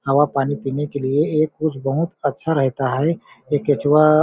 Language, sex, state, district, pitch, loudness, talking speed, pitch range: Hindi, male, Chhattisgarh, Balrampur, 145 Hz, -20 LUFS, 185 wpm, 135-155 Hz